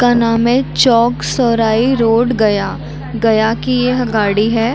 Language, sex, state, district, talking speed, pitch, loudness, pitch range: Hindi, female, Chhattisgarh, Bilaspur, 150 wpm, 230 Hz, -13 LUFS, 220-245 Hz